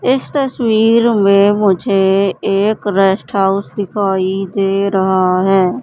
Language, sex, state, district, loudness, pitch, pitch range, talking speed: Hindi, female, Madhya Pradesh, Katni, -13 LUFS, 200 Hz, 195-210 Hz, 115 wpm